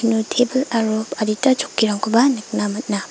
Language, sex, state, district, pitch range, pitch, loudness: Garo, female, Meghalaya, West Garo Hills, 215-245 Hz, 225 Hz, -19 LUFS